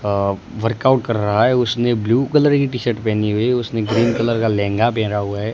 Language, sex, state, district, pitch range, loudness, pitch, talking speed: Hindi, male, Gujarat, Gandhinagar, 105-120 Hz, -18 LUFS, 115 Hz, 225 wpm